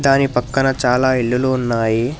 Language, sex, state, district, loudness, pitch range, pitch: Telugu, male, Telangana, Hyderabad, -17 LUFS, 125-135 Hz, 125 Hz